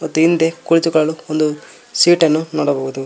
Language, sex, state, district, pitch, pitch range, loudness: Kannada, male, Karnataka, Koppal, 160 Hz, 155-165 Hz, -15 LUFS